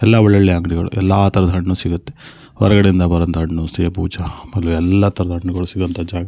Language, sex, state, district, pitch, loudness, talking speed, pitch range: Kannada, male, Karnataka, Shimoga, 90 Hz, -16 LUFS, 160 wpm, 85-100 Hz